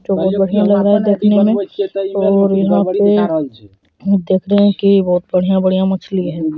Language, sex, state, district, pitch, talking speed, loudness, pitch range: Hindi, female, Bihar, Darbhanga, 195 Hz, 175 wpm, -14 LUFS, 185-200 Hz